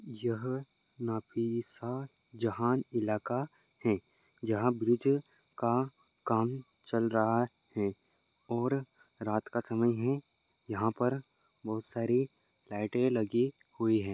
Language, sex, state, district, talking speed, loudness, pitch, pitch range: Hindi, male, Maharashtra, Dhule, 110 wpm, -33 LUFS, 120 Hz, 110-130 Hz